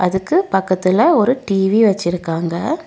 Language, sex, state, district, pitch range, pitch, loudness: Tamil, female, Tamil Nadu, Nilgiris, 180-220 Hz, 190 Hz, -16 LUFS